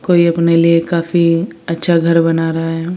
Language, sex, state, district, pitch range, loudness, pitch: Hindi, female, Chandigarh, Chandigarh, 165-170 Hz, -14 LUFS, 170 Hz